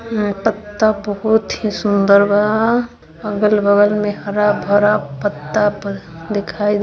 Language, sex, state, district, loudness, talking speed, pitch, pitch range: Hindi, female, Bihar, East Champaran, -16 LUFS, 115 wpm, 205 Hz, 200-210 Hz